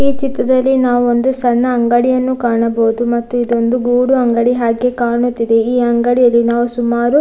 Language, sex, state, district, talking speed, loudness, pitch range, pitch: Kannada, female, Karnataka, Dakshina Kannada, 135 wpm, -13 LUFS, 235-250 Hz, 245 Hz